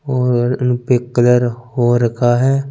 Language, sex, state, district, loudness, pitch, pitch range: Hindi, male, Punjab, Fazilka, -15 LUFS, 125 Hz, 120-125 Hz